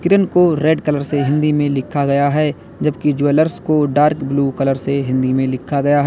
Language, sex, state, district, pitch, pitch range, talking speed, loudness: Hindi, male, Uttar Pradesh, Lalitpur, 145 Hz, 140-150 Hz, 210 wpm, -16 LUFS